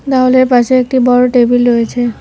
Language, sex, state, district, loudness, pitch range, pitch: Bengali, female, West Bengal, Cooch Behar, -10 LUFS, 245-255 Hz, 250 Hz